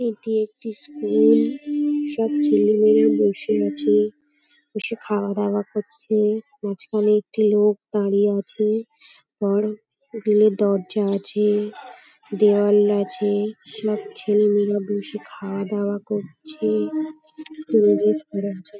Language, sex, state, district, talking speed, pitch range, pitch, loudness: Bengali, female, West Bengal, Paschim Medinipur, 105 wpm, 200-220 Hz, 210 Hz, -21 LUFS